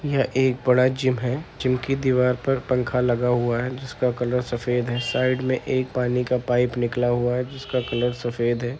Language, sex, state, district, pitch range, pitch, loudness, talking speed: Hindi, male, Uttar Pradesh, Budaun, 120-130 Hz, 125 Hz, -23 LUFS, 205 wpm